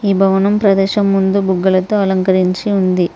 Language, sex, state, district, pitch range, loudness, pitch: Telugu, female, Telangana, Mahabubabad, 185-200 Hz, -14 LUFS, 195 Hz